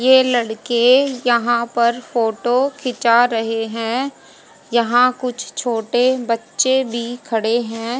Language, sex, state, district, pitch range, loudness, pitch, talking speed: Hindi, female, Haryana, Jhajjar, 230-255 Hz, -18 LUFS, 240 Hz, 110 wpm